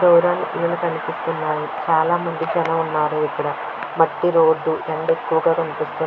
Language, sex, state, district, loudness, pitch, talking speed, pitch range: Telugu, female, Andhra Pradesh, Visakhapatnam, -20 LUFS, 165 Hz, 120 wpm, 160-170 Hz